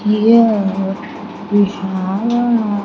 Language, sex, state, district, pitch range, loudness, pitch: English, female, Andhra Pradesh, Sri Satya Sai, 195-225 Hz, -15 LUFS, 205 Hz